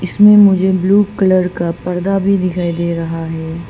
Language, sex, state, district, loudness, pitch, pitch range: Hindi, female, Arunachal Pradesh, Papum Pare, -13 LUFS, 185 Hz, 170-195 Hz